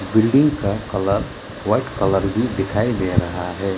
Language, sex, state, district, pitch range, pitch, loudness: Hindi, male, West Bengal, Alipurduar, 95-110 Hz, 100 Hz, -20 LUFS